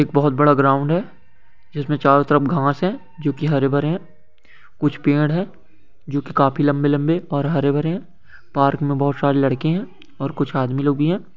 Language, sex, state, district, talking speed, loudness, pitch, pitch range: Hindi, male, West Bengal, Kolkata, 200 wpm, -19 LUFS, 145 Hz, 140-155 Hz